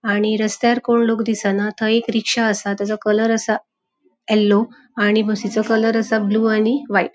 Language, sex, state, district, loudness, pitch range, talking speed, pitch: Konkani, female, Goa, North and South Goa, -18 LUFS, 210-225 Hz, 175 wpm, 220 Hz